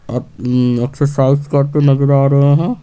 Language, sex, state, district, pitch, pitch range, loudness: Hindi, male, Bihar, Patna, 140 Hz, 125-140 Hz, -13 LUFS